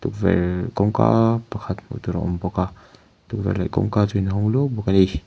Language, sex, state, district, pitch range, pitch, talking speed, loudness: Mizo, male, Mizoram, Aizawl, 90-115 Hz, 100 Hz, 180 wpm, -21 LUFS